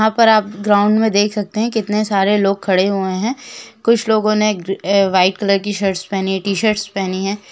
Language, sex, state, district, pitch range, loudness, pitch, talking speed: Hindi, female, Jharkhand, Jamtara, 195-215 Hz, -16 LUFS, 205 Hz, 185 wpm